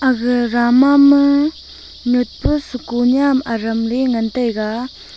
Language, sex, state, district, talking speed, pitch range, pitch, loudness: Wancho, female, Arunachal Pradesh, Longding, 115 wpm, 240-275 Hz, 245 Hz, -16 LUFS